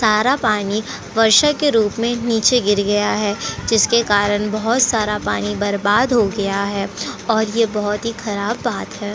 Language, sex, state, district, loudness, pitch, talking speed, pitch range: Hindi, female, Uttar Pradesh, Jyotiba Phule Nagar, -17 LUFS, 215 Hz, 175 wpm, 205-230 Hz